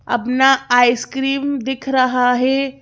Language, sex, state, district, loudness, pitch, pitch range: Hindi, female, Madhya Pradesh, Bhopal, -16 LUFS, 260 Hz, 245-270 Hz